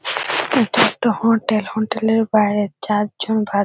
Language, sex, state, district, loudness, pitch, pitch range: Bengali, female, West Bengal, Purulia, -18 LUFS, 215 Hz, 210-220 Hz